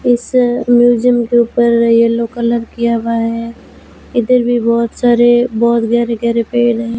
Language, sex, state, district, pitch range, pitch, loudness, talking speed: Hindi, female, Rajasthan, Bikaner, 230-240 Hz, 235 Hz, -13 LUFS, 155 wpm